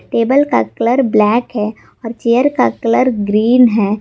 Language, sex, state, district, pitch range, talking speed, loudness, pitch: Hindi, female, Jharkhand, Garhwa, 220-250 Hz, 165 wpm, -13 LUFS, 235 Hz